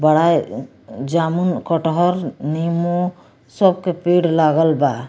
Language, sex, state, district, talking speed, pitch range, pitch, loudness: Bhojpuri, female, Bihar, Muzaffarpur, 105 wpm, 155-175 Hz, 165 Hz, -18 LUFS